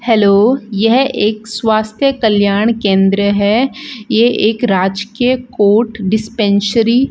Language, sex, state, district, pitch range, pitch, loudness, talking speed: Hindi, female, Rajasthan, Bikaner, 205-240 Hz, 220 Hz, -13 LUFS, 110 wpm